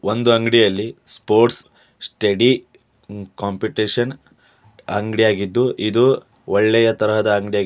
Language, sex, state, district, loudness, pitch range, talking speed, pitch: Kannada, male, Karnataka, Dharwad, -18 LUFS, 105-115 Hz, 85 wpm, 110 Hz